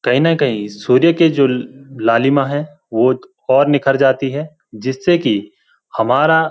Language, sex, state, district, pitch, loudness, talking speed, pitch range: Hindi, male, Uttarakhand, Uttarkashi, 135 Hz, -15 LUFS, 155 wpm, 125-150 Hz